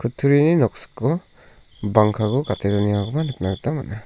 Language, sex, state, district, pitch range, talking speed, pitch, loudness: Garo, male, Meghalaya, South Garo Hills, 105-140 Hz, 120 wpm, 115 Hz, -21 LUFS